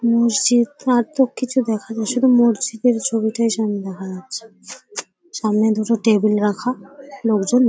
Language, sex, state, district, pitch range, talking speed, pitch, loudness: Bengali, female, West Bengal, Paschim Medinipur, 215-250 Hz, 155 wpm, 230 Hz, -18 LUFS